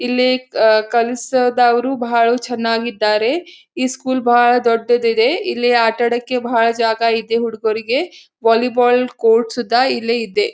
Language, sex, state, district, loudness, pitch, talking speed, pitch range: Kannada, female, Karnataka, Belgaum, -16 LUFS, 240 Hz, 140 wpm, 230-255 Hz